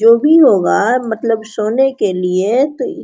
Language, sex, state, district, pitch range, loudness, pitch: Hindi, female, Jharkhand, Sahebganj, 215-265 Hz, -13 LUFS, 230 Hz